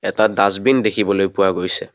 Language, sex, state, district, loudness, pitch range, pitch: Assamese, male, Assam, Kamrup Metropolitan, -17 LUFS, 95-110 Hz, 100 Hz